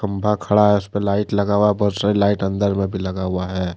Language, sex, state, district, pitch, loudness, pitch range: Hindi, male, Jharkhand, Deoghar, 100 Hz, -19 LUFS, 95-105 Hz